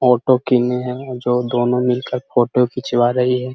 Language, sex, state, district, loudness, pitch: Hindi, male, Bihar, Jahanabad, -18 LUFS, 125 Hz